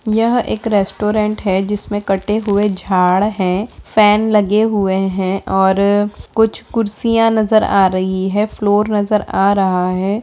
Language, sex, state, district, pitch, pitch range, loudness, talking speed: Hindi, female, Bihar, Begusarai, 205 Hz, 190-215 Hz, -15 LUFS, 145 wpm